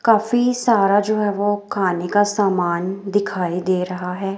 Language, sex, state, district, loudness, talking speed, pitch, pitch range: Hindi, female, Himachal Pradesh, Shimla, -19 LUFS, 165 wpm, 200 Hz, 185-205 Hz